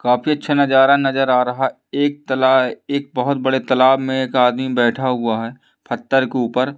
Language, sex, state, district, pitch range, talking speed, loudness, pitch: Hindi, male, Madhya Pradesh, Umaria, 125-135 Hz, 185 wpm, -17 LUFS, 130 Hz